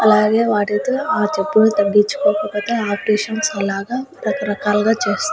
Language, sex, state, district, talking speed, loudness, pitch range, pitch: Telugu, female, Andhra Pradesh, Annamaya, 100 wpm, -17 LUFS, 205-230 Hz, 210 Hz